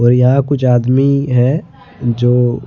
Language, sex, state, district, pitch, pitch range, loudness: Hindi, male, Chandigarh, Chandigarh, 125 Hz, 120-140 Hz, -13 LUFS